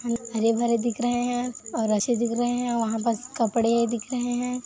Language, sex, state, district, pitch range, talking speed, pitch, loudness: Hindi, female, Chhattisgarh, Kabirdham, 230-245 Hz, 205 wpm, 235 Hz, -25 LUFS